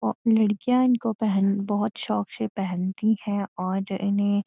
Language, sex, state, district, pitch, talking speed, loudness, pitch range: Hindi, female, Uttarakhand, Uttarkashi, 200 Hz, 160 wpm, -25 LUFS, 190-215 Hz